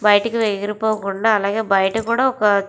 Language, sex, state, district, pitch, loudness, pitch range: Telugu, female, Andhra Pradesh, Visakhapatnam, 210 Hz, -18 LUFS, 200-225 Hz